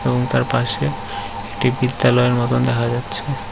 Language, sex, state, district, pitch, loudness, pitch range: Bengali, male, West Bengal, Cooch Behar, 115 Hz, -19 LUFS, 100-125 Hz